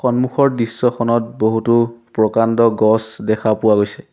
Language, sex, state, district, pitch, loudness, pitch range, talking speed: Assamese, male, Assam, Sonitpur, 115 Hz, -16 LUFS, 110-120 Hz, 115 wpm